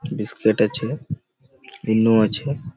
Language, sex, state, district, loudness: Bengali, male, West Bengal, Malda, -20 LUFS